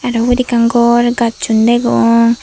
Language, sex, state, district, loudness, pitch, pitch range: Chakma, female, Tripura, Dhalai, -12 LUFS, 235 Hz, 230-240 Hz